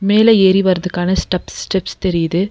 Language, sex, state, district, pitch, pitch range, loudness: Tamil, female, Tamil Nadu, Nilgiris, 190 Hz, 180-195 Hz, -15 LUFS